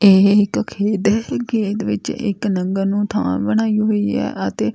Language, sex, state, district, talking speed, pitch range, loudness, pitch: Punjabi, female, Punjab, Fazilka, 190 wpm, 185-210 Hz, -18 LUFS, 205 Hz